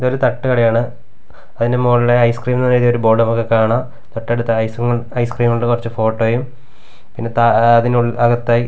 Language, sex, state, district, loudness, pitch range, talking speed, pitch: Malayalam, male, Kerala, Kasaragod, -15 LUFS, 115-120 Hz, 130 wpm, 120 Hz